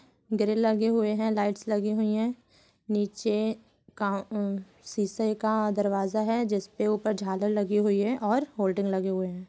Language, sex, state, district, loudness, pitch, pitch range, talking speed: Hindi, female, Bihar, Supaul, -28 LUFS, 210 Hz, 200-220 Hz, 170 wpm